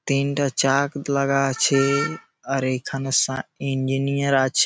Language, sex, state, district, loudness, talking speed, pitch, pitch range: Bengali, male, West Bengal, Malda, -22 LUFS, 130 wpm, 135 Hz, 135-140 Hz